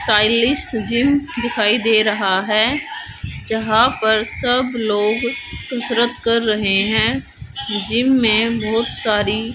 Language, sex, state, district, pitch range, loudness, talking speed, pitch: Hindi, female, Haryana, Jhajjar, 215-240 Hz, -17 LUFS, 115 wpm, 225 Hz